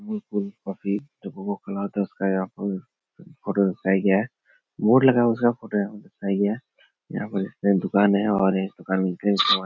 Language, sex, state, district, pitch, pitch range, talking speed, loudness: Hindi, male, Uttar Pradesh, Etah, 100 Hz, 95-115 Hz, 105 wpm, -24 LUFS